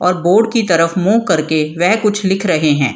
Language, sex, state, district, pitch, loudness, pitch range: Hindi, female, Bihar, Gaya, 180 Hz, -14 LUFS, 160-205 Hz